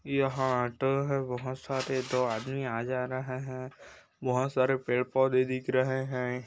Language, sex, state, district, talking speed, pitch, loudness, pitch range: Hindi, male, Chhattisgarh, Bastar, 165 wpm, 130 Hz, -30 LUFS, 125-130 Hz